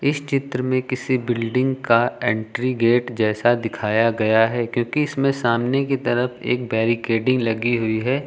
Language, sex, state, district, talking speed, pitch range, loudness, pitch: Hindi, male, Uttar Pradesh, Lucknow, 150 wpm, 115-130 Hz, -20 LUFS, 120 Hz